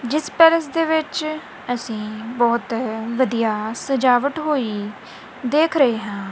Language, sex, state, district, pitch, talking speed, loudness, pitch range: Punjabi, female, Punjab, Kapurthala, 245 Hz, 115 wpm, -20 LUFS, 225-300 Hz